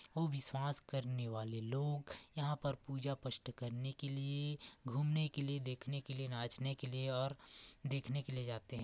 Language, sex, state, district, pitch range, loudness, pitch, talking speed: Hindi, male, Chhattisgarh, Korba, 125-140 Hz, -41 LUFS, 135 Hz, 185 wpm